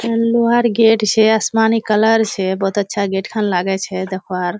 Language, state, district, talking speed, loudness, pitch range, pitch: Surjapuri, Bihar, Kishanganj, 180 wpm, -16 LUFS, 195-225 Hz, 210 Hz